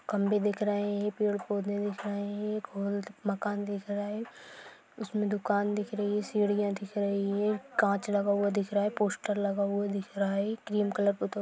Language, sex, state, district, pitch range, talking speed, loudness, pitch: Hindi, female, Chhattisgarh, Jashpur, 200-210 Hz, 205 wpm, -31 LUFS, 205 Hz